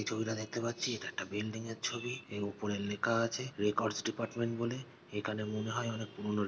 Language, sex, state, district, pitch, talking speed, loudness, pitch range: Bengali, male, West Bengal, North 24 Parganas, 110 Hz, 205 wpm, -37 LUFS, 105-115 Hz